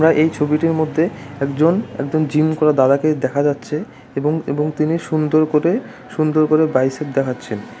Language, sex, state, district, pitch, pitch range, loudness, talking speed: Bengali, male, West Bengal, Malda, 155 Hz, 140-155 Hz, -18 LUFS, 160 wpm